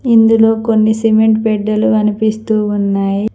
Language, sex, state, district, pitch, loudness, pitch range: Telugu, female, Telangana, Mahabubabad, 220 Hz, -12 LUFS, 210-225 Hz